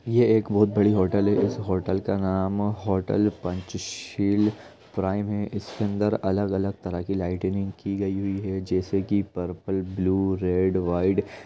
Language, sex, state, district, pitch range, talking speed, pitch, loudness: Hindi, male, Chhattisgarh, Rajnandgaon, 95-105 Hz, 155 wpm, 95 Hz, -25 LUFS